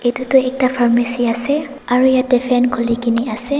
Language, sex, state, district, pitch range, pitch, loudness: Nagamese, female, Nagaland, Dimapur, 240-260 Hz, 250 Hz, -16 LUFS